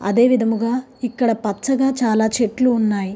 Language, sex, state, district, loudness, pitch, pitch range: Telugu, female, Andhra Pradesh, Srikakulam, -18 LUFS, 230 Hz, 220-255 Hz